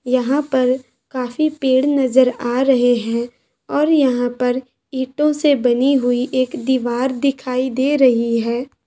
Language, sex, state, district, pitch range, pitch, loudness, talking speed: Hindi, female, Bihar, Bhagalpur, 245-270 Hz, 255 Hz, -17 LUFS, 140 wpm